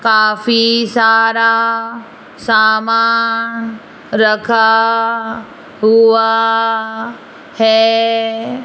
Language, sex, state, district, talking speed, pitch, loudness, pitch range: Hindi, female, Rajasthan, Jaipur, 40 wpm, 225 Hz, -12 LUFS, 225-230 Hz